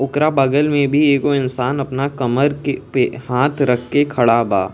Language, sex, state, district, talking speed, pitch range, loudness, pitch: Bhojpuri, male, Bihar, East Champaran, 190 wpm, 125-145 Hz, -17 LUFS, 135 Hz